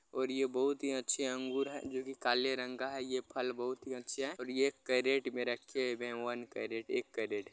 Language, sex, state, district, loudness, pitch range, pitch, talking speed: Hindi, male, Uttar Pradesh, Gorakhpur, -37 LUFS, 125-135 Hz, 130 Hz, 245 wpm